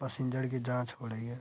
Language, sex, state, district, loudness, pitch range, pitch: Hindi, female, Bihar, Araria, -35 LUFS, 120-130 Hz, 125 Hz